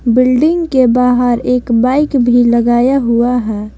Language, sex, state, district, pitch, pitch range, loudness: Hindi, female, Jharkhand, Palamu, 245 Hz, 240-255 Hz, -11 LUFS